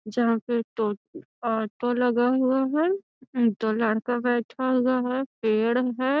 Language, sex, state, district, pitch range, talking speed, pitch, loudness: Magahi, female, Bihar, Gaya, 230-255 Hz, 135 wpm, 245 Hz, -25 LUFS